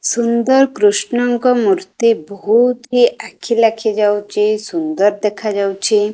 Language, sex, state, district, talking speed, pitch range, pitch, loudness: Odia, female, Odisha, Khordha, 100 wpm, 205-240 Hz, 220 Hz, -15 LUFS